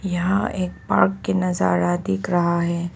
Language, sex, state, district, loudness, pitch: Hindi, female, Arunachal Pradesh, Papum Pare, -21 LUFS, 170 Hz